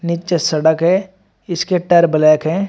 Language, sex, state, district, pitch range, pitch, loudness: Hindi, male, Uttar Pradesh, Shamli, 160-180 Hz, 170 Hz, -14 LUFS